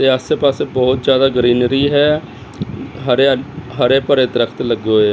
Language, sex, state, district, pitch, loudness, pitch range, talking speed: Punjabi, male, Chandigarh, Chandigarh, 135 Hz, -14 LUFS, 125-140 Hz, 150 wpm